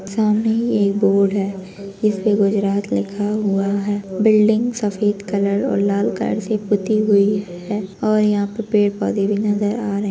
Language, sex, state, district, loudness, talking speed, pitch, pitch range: Kumaoni, female, Uttarakhand, Tehri Garhwal, -18 LUFS, 180 wpm, 205 Hz, 200-215 Hz